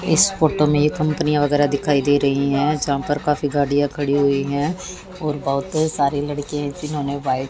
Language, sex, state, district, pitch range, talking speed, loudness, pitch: Hindi, female, Haryana, Jhajjar, 140-150 Hz, 185 wpm, -20 LUFS, 145 Hz